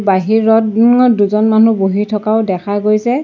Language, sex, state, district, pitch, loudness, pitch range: Assamese, female, Assam, Sonitpur, 215 Hz, -12 LUFS, 205-225 Hz